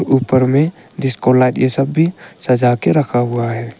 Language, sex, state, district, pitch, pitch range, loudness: Hindi, male, Arunachal Pradesh, Longding, 130 Hz, 120-135 Hz, -15 LUFS